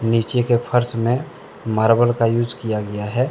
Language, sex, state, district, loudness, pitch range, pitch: Hindi, male, Jharkhand, Deoghar, -19 LUFS, 110-120 Hz, 115 Hz